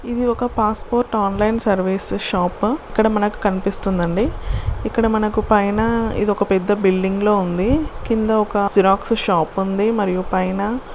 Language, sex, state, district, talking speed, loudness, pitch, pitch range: Telugu, female, Telangana, Karimnagar, 130 wpm, -19 LUFS, 205 Hz, 195-225 Hz